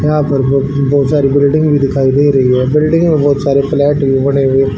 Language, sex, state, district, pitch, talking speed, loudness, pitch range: Hindi, male, Haryana, Rohtak, 140 Hz, 240 wpm, -11 LUFS, 135-145 Hz